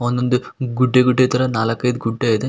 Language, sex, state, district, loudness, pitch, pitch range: Kannada, male, Karnataka, Shimoga, -18 LUFS, 125 Hz, 120-130 Hz